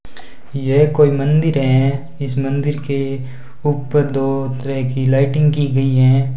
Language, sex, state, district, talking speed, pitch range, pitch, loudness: Hindi, male, Rajasthan, Bikaner, 140 wpm, 135-145 Hz, 135 Hz, -16 LUFS